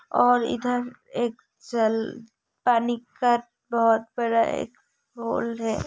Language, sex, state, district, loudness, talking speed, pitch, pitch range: Hindi, female, Uttar Pradesh, Hamirpur, -25 LUFS, 100 wpm, 235 Hz, 230-245 Hz